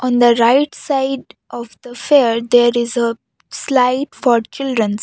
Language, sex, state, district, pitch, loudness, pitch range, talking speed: English, female, Assam, Kamrup Metropolitan, 245 Hz, -15 LUFS, 235-270 Hz, 155 wpm